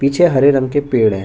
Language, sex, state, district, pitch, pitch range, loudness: Hindi, male, Chhattisgarh, Bastar, 135 Hz, 125-145 Hz, -14 LUFS